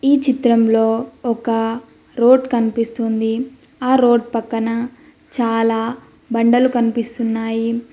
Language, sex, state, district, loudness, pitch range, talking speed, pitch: Telugu, female, Telangana, Mahabubabad, -17 LUFS, 225-250 Hz, 85 wpm, 235 Hz